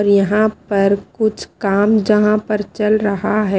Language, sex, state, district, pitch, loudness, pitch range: Hindi, female, Haryana, Rohtak, 210 Hz, -16 LUFS, 200-215 Hz